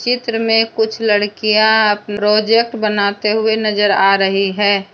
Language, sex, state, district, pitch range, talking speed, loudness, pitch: Hindi, female, Jharkhand, Deoghar, 205-220 Hz, 145 wpm, -14 LUFS, 215 Hz